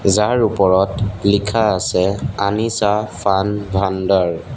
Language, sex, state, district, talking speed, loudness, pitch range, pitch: Assamese, male, Assam, Sonitpur, 90 wpm, -17 LUFS, 95-105 Hz, 100 Hz